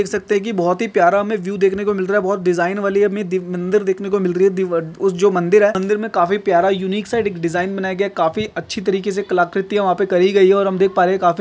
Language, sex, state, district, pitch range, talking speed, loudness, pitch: Hindi, male, Maharashtra, Nagpur, 180-205 Hz, 270 wpm, -17 LUFS, 195 Hz